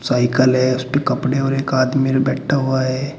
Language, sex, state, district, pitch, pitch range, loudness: Hindi, male, Uttar Pradesh, Shamli, 130 Hz, 130-135 Hz, -17 LUFS